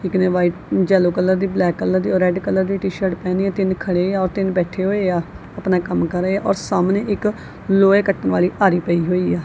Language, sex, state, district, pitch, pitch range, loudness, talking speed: Punjabi, female, Punjab, Kapurthala, 185 Hz, 180-195 Hz, -18 LUFS, 230 wpm